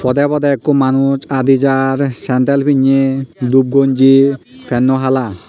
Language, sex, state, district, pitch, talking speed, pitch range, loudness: Chakma, male, Tripura, Unakoti, 135 Hz, 130 wpm, 130-140 Hz, -13 LUFS